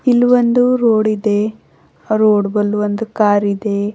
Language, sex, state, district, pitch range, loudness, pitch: Kannada, female, Karnataka, Bidar, 205-230 Hz, -15 LUFS, 215 Hz